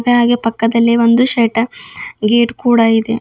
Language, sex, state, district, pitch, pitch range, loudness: Kannada, female, Karnataka, Bidar, 235 Hz, 230-240 Hz, -13 LUFS